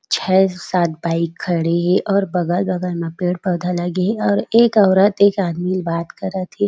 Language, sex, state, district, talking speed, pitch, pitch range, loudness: Chhattisgarhi, female, Chhattisgarh, Raigarh, 170 wpm, 180 Hz, 170-195 Hz, -18 LUFS